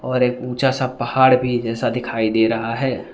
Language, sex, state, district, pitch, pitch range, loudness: Hindi, male, Arunachal Pradesh, Lower Dibang Valley, 125 Hz, 115-130 Hz, -19 LUFS